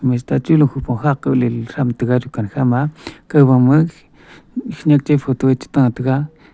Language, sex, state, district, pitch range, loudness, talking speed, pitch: Wancho, male, Arunachal Pradesh, Longding, 125-150 Hz, -16 LUFS, 155 wpm, 135 Hz